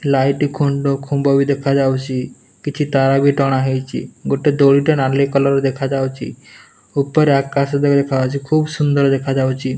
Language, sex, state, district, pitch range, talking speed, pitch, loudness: Odia, male, Odisha, Nuapada, 135-140 Hz, 130 wpm, 140 Hz, -16 LUFS